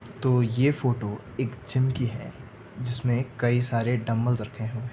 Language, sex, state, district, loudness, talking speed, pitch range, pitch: Hindi, male, Maharashtra, Aurangabad, -27 LUFS, 160 wpm, 115-125 Hz, 120 Hz